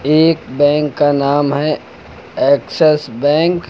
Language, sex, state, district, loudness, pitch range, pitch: Hindi, male, Uttar Pradesh, Lucknow, -14 LUFS, 140-155 Hz, 145 Hz